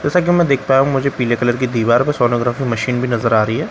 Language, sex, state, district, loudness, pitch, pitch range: Hindi, male, Bihar, Katihar, -16 LUFS, 125 Hz, 120-135 Hz